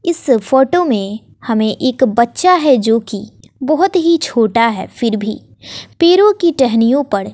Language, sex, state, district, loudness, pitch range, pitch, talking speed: Hindi, female, Bihar, West Champaran, -13 LUFS, 225-335 Hz, 255 Hz, 155 wpm